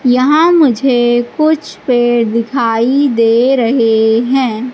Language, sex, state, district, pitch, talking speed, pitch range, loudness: Hindi, female, Madhya Pradesh, Katni, 245 Hz, 100 wpm, 230-270 Hz, -11 LUFS